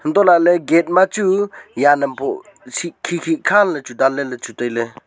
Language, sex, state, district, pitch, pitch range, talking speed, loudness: Wancho, male, Arunachal Pradesh, Longding, 165 Hz, 135-185 Hz, 190 wpm, -17 LUFS